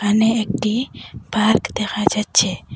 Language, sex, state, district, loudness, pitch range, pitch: Bengali, female, Assam, Hailakandi, -18 LUFS, 210-225 Hz, 215 Hz